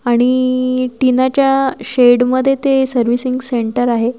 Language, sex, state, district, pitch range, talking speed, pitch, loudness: Marathi, female, Maharashtra, Washim, 245-260 Hz, 130 wpm, 255 Hz, -14 LUFS